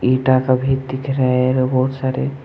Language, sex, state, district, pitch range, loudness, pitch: Hindi, male, Jharkhand, Deoghar, 130-135 Hz, -17 LUFS, 130 Hz